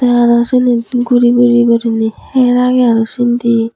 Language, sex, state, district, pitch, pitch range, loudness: Chakma, female, Tripura, Unakoti, 240 Hz, 235-245 Hz, -11 LUFS